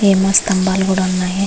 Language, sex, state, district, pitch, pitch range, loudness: Telugu, female, Andhra Pradesh, Visakhapatnam, 190 Hz, 185-195 Hz, -14 LUFS